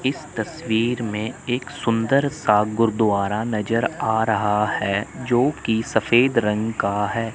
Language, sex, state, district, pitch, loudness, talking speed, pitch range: Hindi, male, Chandigarh, Chandigarh, 115 Hz, -21 LUFS, 140 wpm, 105-120 Hz